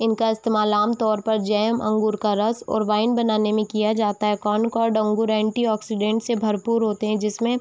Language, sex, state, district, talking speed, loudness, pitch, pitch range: Hindi, female, Chhattisgarh, Raigarh, 195 wpm, -21 LUFS, 215 Hz, 210-225 Hz